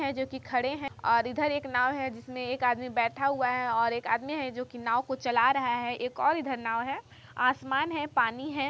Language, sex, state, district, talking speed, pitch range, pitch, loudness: Hindi, female, Chhattisgarh, Kabirdham, 215 wpm, 240-275 Hz, 255 Hz, -29 LUFS